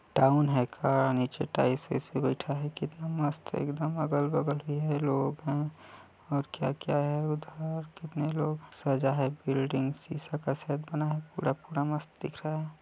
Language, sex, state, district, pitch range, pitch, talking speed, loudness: Chhattisgarhi, male, Chhattisgarh, Balrampur, 135-155 Hz, 145 Hz, 175 wpm, -31 LUFS